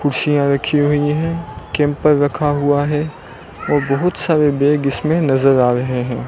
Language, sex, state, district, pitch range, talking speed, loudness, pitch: Hindi, male, Rajasthan, Bikaner, 140-150 Hz, 160 wpm, -16 LUFS, 145 Hz